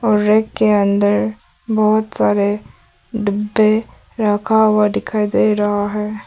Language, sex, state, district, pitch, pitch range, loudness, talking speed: Hindi, female, Arunachal Pradesh, Papum Pare, 210 Hz, 205-215 Hz, -16 LUFS, 125 wpm